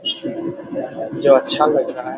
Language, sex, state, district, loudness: Hindi, male, Bihar, Muzaffarpur, -18 LUFS